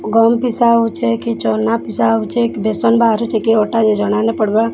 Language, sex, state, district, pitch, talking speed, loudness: Odia, female, Odisha, Sambalpur, 210 Hz, 205 wpm, -15 LUFS